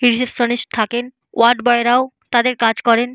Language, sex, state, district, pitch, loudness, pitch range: Bengali, female, Jharkhand, Jamtara, 240 Hz, -16 LUFS, 235-245 Hz